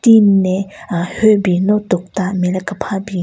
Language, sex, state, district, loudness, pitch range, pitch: Rengma, female, Nagaland, Kohima, -15 LUFS, 185-210 Hz, 195 Hz